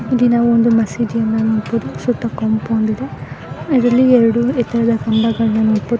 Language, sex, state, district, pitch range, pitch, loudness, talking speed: Kannada, female, Karnataka, Raichur, 220-235 Hz, 230 Hz, -15 LUFS, 90 wpm